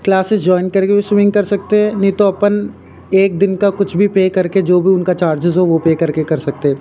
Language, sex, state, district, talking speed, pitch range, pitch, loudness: Hindi, male, Rajasthan, Jaipur, 245 wpm, 180-200 Hz, 190 Hz, -14 LUFS